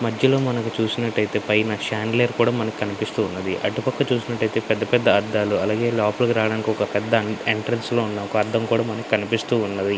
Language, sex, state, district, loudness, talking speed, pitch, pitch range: Telugu, male, Andhra Pradesh, Guntur, -22 LUFS, 160 wpm, 110 Hz, 105-115 Hz